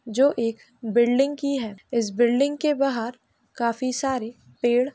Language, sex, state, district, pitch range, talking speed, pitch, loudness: Hindi, female, Uttar Pradesh, Hamirpur, 230-270 Hz, 160 wpm, 245 Hz, -24 LUFS